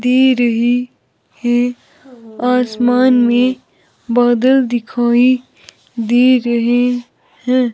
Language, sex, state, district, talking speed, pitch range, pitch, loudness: Hindi, female, Himachal Pradesh, Shimla, 75 wpm, 240-255 Hz, 245 Hz, -14 LUFS